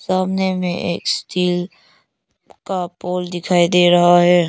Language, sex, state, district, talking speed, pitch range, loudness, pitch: Hindi, female, Arunachal Pradesh, Lower Dibang Valley, 135 wpm, 175-185 Hz, -17 LUFS, 180 Hz